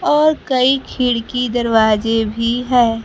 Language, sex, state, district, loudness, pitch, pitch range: Hindi, female, Bihar, Kaimur, -16 LUFS, 240 Hz, 225-255 Hz